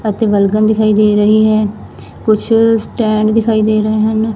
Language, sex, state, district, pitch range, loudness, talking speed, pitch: Punjabi, female, Punjab, Fazilka, 215-220 Hz, -12 LUFS, 165 wpm, 215 Hz